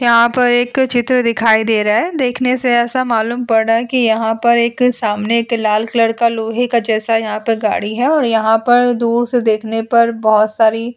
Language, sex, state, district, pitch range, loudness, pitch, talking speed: Hindi, female, Uttar Pradesh, Etah, 225-245 Hz, -14 LUFS, 235 Hz, 225 wpm